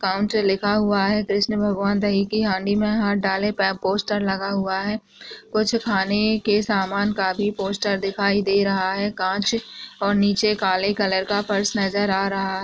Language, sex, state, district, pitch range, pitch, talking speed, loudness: Hindi, female, Uttar Pradesh, Muzaffarnagar, 195-210 Hz, 200 Hz, 185 wpm, -21 LUFS